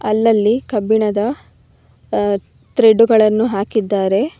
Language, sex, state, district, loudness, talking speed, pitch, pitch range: Kannada, female, Karnataka, Bangalore, -15 LUFS, 70 wpm, 220 Hz, 210-230 Hz